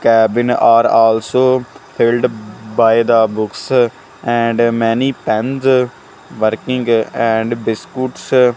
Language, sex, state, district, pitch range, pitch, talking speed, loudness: English, male, Punjab, Kapurthala, 115-125 Hz, 115 Hz, 100 wpm, -14 LUFS